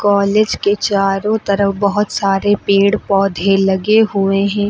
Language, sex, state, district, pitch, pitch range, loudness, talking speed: Hindi, female, Uttar Pradesh, Lucknow, 200 Hz, 195-205 Hz, -14 LUFS, 140 wpm